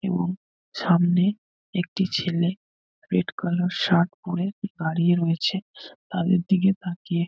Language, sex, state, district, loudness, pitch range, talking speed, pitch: Bengali, male, West Bengal, North 24 Parganas, -24 LUFS, 175-190 Hz, 105 wpm, 180 Hz